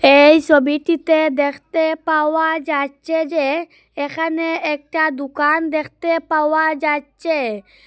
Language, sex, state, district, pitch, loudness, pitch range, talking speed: Bengali, female, Assam, Hailakandi, 310 Hz, -17 LUFS, 290-320 Hz, 90 wpm